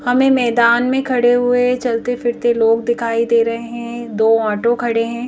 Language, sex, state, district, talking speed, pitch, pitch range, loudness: Hindi, female, Madhya Pradesh, Bhopal, 180 wpm, 240 Hz, 230-245 Hz, -16 LUFS